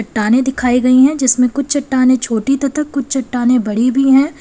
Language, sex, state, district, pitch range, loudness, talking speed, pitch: Hindi, female, Uttar Pradesh, Lalitpur, 245-275 Hz, -13 LUFS, 190 wpm, 260 Hz